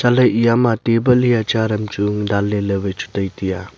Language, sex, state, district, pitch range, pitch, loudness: Wancho, male, Arunachal Pradesh, Longding, 100-115 Hz, 105 Hz, -17 LUFS